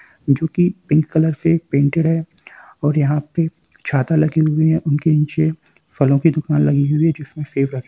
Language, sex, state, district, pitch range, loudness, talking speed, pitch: Hindi, male, Bihar, Samastipur, 145-160 Hz, -17 LUFS, 200 wpm, 155 Hz